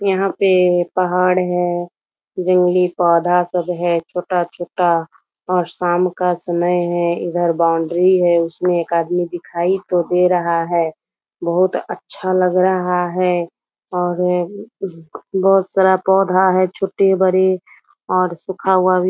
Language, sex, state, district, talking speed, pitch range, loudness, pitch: Hindi, female, Bihar, Begusarai, 125 wpm, 175-185 Hz, -17 LUFS, 180 Hz